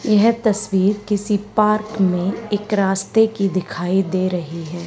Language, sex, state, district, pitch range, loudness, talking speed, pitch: Hindi, female, Haryana, Charkhi Dadri, 185-215 Hz, -19 LUFS, 150 wpm, 200 Hz